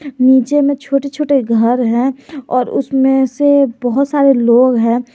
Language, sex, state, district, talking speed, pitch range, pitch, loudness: Hindi, male, Jharkhand, Garhwa, 150 wpm, 245-280 Hz, 265 Hz, -13 LUFS